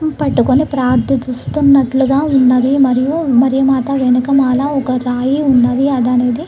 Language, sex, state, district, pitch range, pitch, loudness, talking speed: Telugu, female, Andhra Pradesh, Krishna, 250-275 Hz, 265 Hz, -13 LUFS, 140 wpm